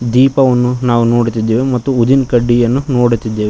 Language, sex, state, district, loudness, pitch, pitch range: Kannada, male, Karnataka, Koppal, -12 LUFS, 120 Hz, 120-130 Hz